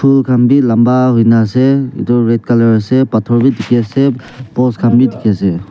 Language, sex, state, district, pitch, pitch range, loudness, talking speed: Nagamese, male, Nagaland, Kohima, 120 Hz, 115-130 Hz, -11 LUFS, 200 wpm